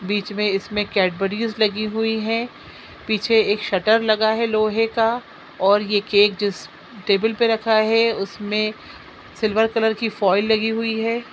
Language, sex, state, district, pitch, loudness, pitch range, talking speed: Hindi, female, Chhattisgarh, Sukma, 215 Hz, -20 LUFS, 205-225 Hz, 160 wpm